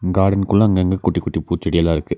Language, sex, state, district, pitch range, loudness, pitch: Tamil, male, Tamil Nadu, Nilgiris, 85-95 Hz, -18 LUFS, 90 Hz